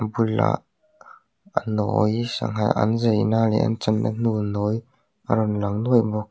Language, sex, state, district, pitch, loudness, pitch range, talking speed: Mizo, male, Mizoram, Aizawl, 110 Hz, -22 LUFS, 105-115 Hz, 150 wpm